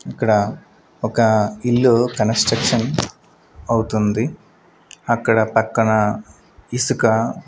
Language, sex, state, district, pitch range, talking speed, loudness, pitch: Telugu, male, Andhra Pradesh, Manyam, 110-120 Hz, 65 wpm, -18 LUFS, 115 Hz